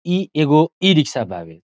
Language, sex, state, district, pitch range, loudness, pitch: Bhojpuri, male, Bihar, Saran, 150-180 Hz, -16 LUFS, 155 Hz